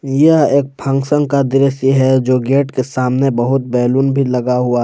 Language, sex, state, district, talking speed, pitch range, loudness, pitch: Hindi, male, Jharkhand, Palamu, 185 wpm, 125-140 Hz, -14 LUFS, 135 Hz